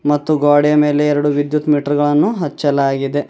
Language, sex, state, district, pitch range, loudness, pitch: Kannada, male, Karnataka, Bidar, 145-150 Hz, -15 LUFS, 145 Hz